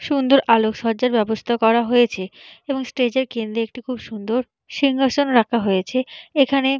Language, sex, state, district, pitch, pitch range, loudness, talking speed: Bengali, female, West Bengal, Purulia, 245 Hz, 225-270 Hz, -19 LUFS, 140 wpm